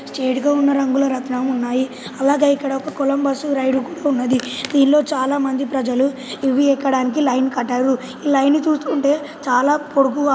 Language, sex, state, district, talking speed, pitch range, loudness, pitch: Telugu, male, Telangana, Nalgonda, 140 wpm, 260-285 Hz, -18 LUFS, 275 Hz